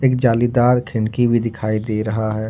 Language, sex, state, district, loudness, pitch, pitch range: Hindi, male, Jharkhand, Ranchi, -18 LUFS, 115 Hz, 110-120 Hz